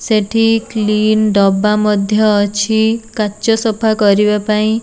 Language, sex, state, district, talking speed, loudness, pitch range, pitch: Odia, female, Odisha, Nuapada, 110 wpm, -13 LUFS, 210-220 Hz, 215 Hz